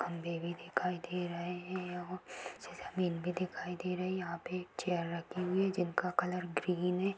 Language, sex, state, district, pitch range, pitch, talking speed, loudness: Hindi, female, Bihar, Sitamarhi, 175-180 Hz, 180 Hz, 210 wpm, -37 LUFS